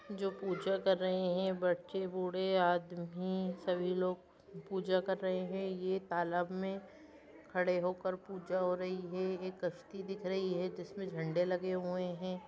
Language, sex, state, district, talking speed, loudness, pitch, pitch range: Hindi, female, Bihar, Darbhanga, 160 wpm, -37 LUFS, 185 Hz, 180-190 Hz